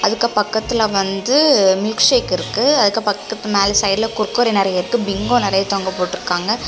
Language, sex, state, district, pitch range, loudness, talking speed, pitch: Tamil, female, Tamil Nadu, Kanyakumari, 195-225 Hz, -16 LUFS, 155 wpm, 210 Hz